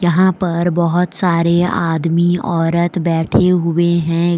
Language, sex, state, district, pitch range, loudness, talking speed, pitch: Hindi, female, Jharkhand, Deoghar, 170-180 Hz, -15 LUFS, 125 wpm, 170 Hz